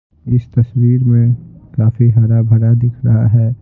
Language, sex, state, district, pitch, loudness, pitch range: Hindi, male, Bihar, Patna, 120 Hz, -13 LUFS, 115-125 Hz